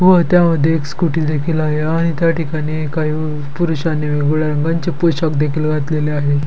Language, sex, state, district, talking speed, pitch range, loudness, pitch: Marathi, male, Maharashtra, Dhule, 160 wpm, 150-165 Hz, -16 LUFS, 155 Hz